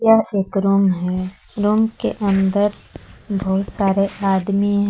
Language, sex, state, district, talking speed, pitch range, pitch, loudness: Hindi, female, Jharkhand, Palamu, 135 wpm, 195-205 Hz, 200 Hz, -19 LUFS